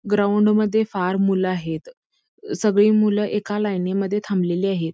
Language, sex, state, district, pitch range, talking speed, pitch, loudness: Marathi, female, Karnataka, Belgaum, 190-215 Hz, 145 wpm, 205 Hz, -20 LUFS